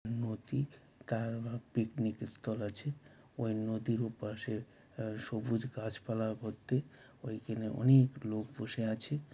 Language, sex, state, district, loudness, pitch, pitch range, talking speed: Bengali, male, West Bengal, North 24 Parganas, -37 LUFS, 115 Hz, 110-130 Hz, 115 wpm